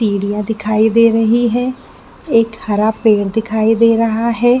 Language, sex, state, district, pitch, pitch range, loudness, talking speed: Hindi, female, Chhattisgarh, Bilaspur, 225 Hz, 215-230 Hz, -14 LUFS, 155 wpm